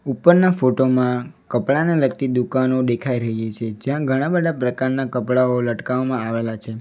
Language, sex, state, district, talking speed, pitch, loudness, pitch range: Gujarati, male, Gujarat, Valsad, 150 wpm, 130 Hz, -20 LUFS, 120-135 Hz